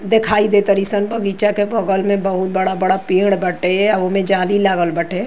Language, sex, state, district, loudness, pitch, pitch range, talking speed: Bhojpuri, female, Uttar Pradesh, Ghazipur, -16 LUFS, 195 Hz, 185-205 Hz, 195 wpm